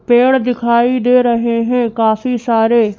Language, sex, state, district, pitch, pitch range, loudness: Hindi, female, Madhya Pradesh, Bhopal, 235 Hz, 230-250 Hz, -13 LUFS